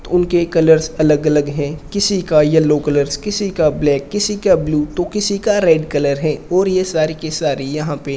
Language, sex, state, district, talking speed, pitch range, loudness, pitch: Hindi, male, Rajasthan, Bikaner, 215 wpm, 150-180 Hz, -16 LUFS, 155 Hz